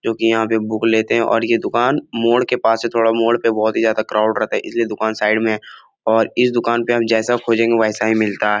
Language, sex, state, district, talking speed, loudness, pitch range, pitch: Hindi, male, Bihar, Jahanabad, 260 wpm, -17 LUFS, 110-115 Hz, 115 Hz